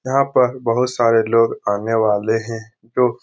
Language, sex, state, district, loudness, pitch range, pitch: Hindi, male, Bihar, Lakhisarai, -18 LUFS, 115-125 Hz, 115 Hz